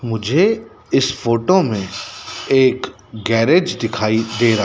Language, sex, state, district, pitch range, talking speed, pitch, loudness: Hindi, male, Madhya Pradesh, Dhar, 110-135 Hz, 115 wpm, 115 Hz, -17 LUFS